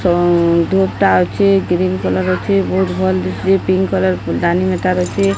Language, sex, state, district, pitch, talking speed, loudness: Odia, female, Odisha, Sambalpur, 170 Hz, 155 wpm, -15 LUFS